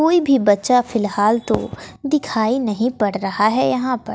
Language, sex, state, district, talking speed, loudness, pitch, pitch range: Hindi, female, Bihar, West Champaran, 175 wpm, -18 LUFS, 235 Hz, 210-255 Hz